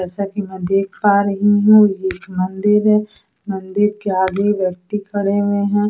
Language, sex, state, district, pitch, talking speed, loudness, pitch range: Hindi, female, Odisha, Sambalpur, 200 Hz, 185 wpm, -17 LUFS, 190-205 Hz